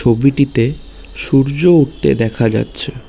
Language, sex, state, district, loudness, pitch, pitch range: Bengali, male, West Bengal, Cooch Behar, -14 LUFS, 135 Hz, 115-140 Hz